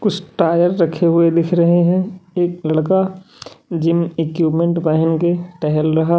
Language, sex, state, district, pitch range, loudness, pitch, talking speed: Hindi, male, Uttar Pradesh, Lalitpur, 165-180 Hz, -16 LUFS, 170 Hz, 145 wpm